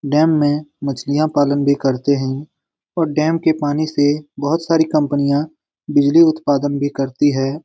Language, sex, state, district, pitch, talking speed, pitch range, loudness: Hindi, male, Bihar, Lakhisarai, 145 Hz, 155 wpm, 140-155 Hz, -17 LUFS